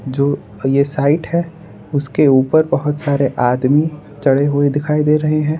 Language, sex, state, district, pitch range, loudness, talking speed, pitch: Hindi, male, Gujarat, Valsad, 140-150 Hz, -16 LUFS, 160 wpm, 145 Hz